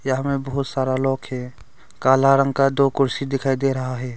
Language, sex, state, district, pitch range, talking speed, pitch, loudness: Hindi, male, Arunachal Pradesh, Longding, 130-135 Hz, 215 wpm, 135 Hz, -20 LUFS